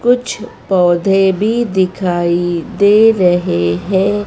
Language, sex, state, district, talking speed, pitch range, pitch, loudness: Hindi, female, Madhya Pradesh, Dhar, 100 wpm, 175-205 Hz, 190 Hz, -13 LUFS